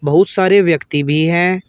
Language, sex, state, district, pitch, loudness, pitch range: Hindi, male, Uttar Pradesh, Shamli, 170 Hz, -13 LUFS, 150-190 Hz